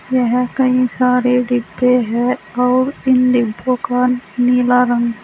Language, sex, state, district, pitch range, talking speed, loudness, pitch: Hindi, female, Uttar Pradesh, Saharanpur, 245-250 Hz, 125 wpm, -15 LUFS, 250 Hz